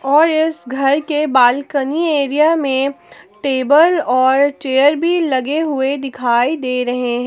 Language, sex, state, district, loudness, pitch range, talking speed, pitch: Hindi, female, Jharkhand, Palamu, -15 LUFS, 260-300 Hz, 140 wpm, 275 Hz